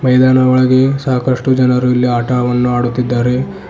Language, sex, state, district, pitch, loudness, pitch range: Kannada, male, Karnataka, Bidar, 125 Hz, -13 LUFS, 125-130 Hz